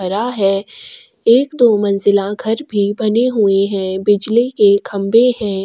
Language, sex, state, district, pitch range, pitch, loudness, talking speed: Hindi, female, Chhattisgarh, Kabirdham, 200-230 Hz, 205 Hz, -14 LUFS, 150 wpm